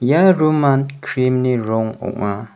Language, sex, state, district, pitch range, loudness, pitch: Garo, male, Meghalaya, West Garo Hills, 110-145 Hz, -17 LUFS, 130 Hz